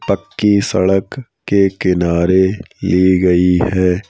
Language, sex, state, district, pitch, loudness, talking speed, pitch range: Hindi, male, Madhya Pradesh, Bhopal, 95 Hz, -14 LUFS, 100 wpm, 90-100 Hz